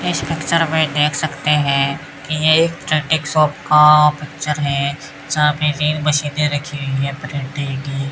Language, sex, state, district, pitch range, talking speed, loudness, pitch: Hindi, male, Rajasthan, Bikaner, 140-155 Hz, 155 wpm, -17 LUFS, 150 Hz